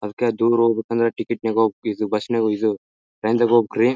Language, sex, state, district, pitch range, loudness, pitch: Kannada, male, Karnataka, Bijapur, 105-115 Hz, -20 LUFS, 115 Hz